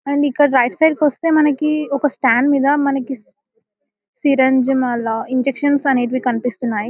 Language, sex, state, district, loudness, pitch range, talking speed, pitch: Telugu, female, Telangana, Karimnagar, -16 LUFS, 250-285 Hz, 165 wpm, 270 Hz